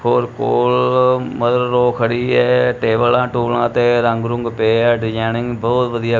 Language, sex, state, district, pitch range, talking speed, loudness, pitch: Punjabi, male, Punjab, Kapurthala, 115-120 Hz, 165 wpm, -16 LUFS, 120 Hz